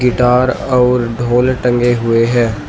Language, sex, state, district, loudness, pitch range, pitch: Hindi, male, Uttar Pradesh, Shamli, -13 LUFS, 120-125 Hz, 125 Hz